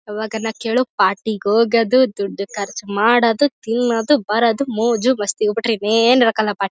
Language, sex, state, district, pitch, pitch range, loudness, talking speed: Kannada, female, Karnataka, Bellary, 225 Hz, 210-235 Hz, -17 LUFS, 160 wpm